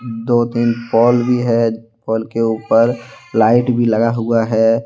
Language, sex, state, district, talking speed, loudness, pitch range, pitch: Hindi, male, Jharkhand, Deoghar, 160 wpm, -15 LUFS, 115-120 Hz, 115 Hz